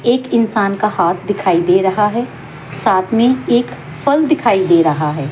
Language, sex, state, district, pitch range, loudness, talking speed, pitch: Hindi, female, Chandigarh, Chandigarh, 170-240 Hz, -14 LUFS, 180 wpm, 200 Hz